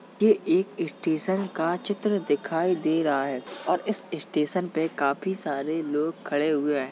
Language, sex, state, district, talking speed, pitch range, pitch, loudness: Hindi, male, Uttar Pradesh, Jalaun, 165 wpm, 150-190 Hz, 160 Hz, -26 LUFS